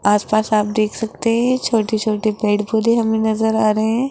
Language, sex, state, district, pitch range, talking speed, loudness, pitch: Hindi, female, Rajasthan, Jaipur, 215-225 Hz, 205 wpm, -17 LUFS, 220 Hz